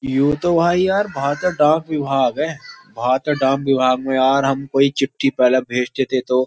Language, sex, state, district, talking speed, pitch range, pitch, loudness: Hindi, male, Uttar Pradesh, Jyotiba Phule Nagar, 195 wpm, 130-150 Hz, 135 Hz, -18 LUFS